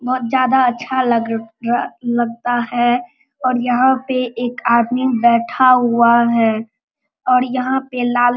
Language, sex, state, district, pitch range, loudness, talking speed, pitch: Hindi, male, Bihar, Araria, 235-255 Hz, -16 LUFS, 135 wpm, 245 Hz